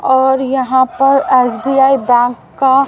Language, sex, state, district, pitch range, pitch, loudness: Hindi, female, Haryana, Rohtak, 255-270 Hz, 265 Hz, -12 LUFS